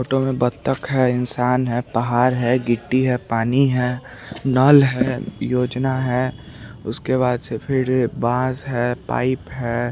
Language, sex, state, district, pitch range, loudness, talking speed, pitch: Hindi, male, Chandigarh, Chandigarh, 120-130 Hz, -20 LUFS, 145 wpm, 125 Hz